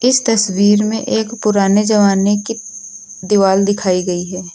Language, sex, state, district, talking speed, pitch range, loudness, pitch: Hindi, female, Uttar Pradesh, Lucknow, 145 wpm, 195-220 Hz, -14 LUFS, 205 Hz